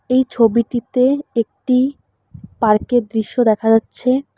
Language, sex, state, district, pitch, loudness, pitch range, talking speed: Bengali, female, West Bengal, Alipurduar, 240 Hz, -17 LUFS, 225-255 Hz, 110 wpm